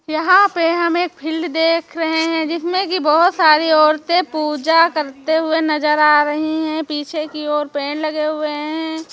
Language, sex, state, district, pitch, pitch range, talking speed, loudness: Hindi, female, Chhattisgarh, Raipur, 315 Hz, 305-330 Hz, 180 wpm, -16 LUFS